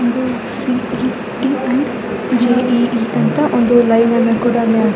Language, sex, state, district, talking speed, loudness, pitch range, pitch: Kannada, female, Karnataka, Chamarajanagar, 135 wpm, -15 LUFS, 230-250 Hz, 240 Hz